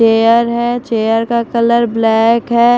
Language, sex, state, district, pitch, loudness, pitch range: Hindi, female, Delhi, New Delhi, 235 Hz, -13 LUFS, 225-235 Hz